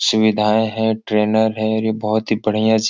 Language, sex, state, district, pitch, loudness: Hindi, male, Bihar, Jahanabad, 110 Hz, -18 LUFS